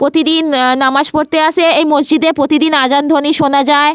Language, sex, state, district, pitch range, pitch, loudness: Bengali, female, Jharkhand, Sahebganj, 280-315 Hz, 295 Hz, -11 LUFS